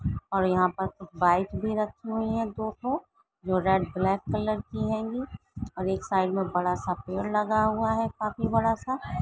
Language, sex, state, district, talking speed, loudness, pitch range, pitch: Hindi, female, Chhattisgarh, Rajnandgaon, 180 wpm, -28 LUFS, 185-220 Hz, 195 Hz